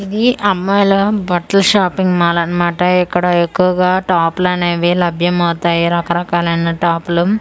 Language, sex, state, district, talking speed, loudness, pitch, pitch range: Telugu, female, Andhra Pradesh, Manyam, 120 wpm, -14 LUFS, 175 Hz, 170-190 Hz